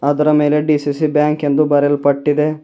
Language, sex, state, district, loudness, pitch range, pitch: Kannada, male, Karnataka, Bidar, -15 LUFS, 145-150 Hz, 150 Hz